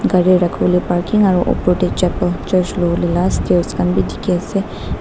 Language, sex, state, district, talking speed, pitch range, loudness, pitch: Nagamese, female, Nagaland, Dimapur, 190 wpm, 170-185 Hz, -16 LUFS, 180 Hz